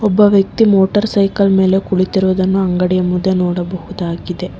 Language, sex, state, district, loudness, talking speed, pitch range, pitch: Kannada, female, Karnataka, Bangalore, -14 LUFS, 115 wpm, 180-200 Hz, 190 Hz